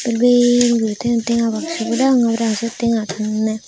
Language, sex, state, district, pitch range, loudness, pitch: Chakma, female, Tripura, Unakoti, 220-240 Hz, -17 LUFS, 230 Hz